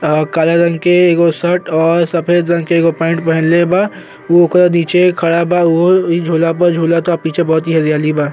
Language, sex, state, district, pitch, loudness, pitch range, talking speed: Bhojpuri, male, Uttar Pradesh, Gorakhpur, 170 Hz, -12 LUFS, 165-175 Hz, 200 wpm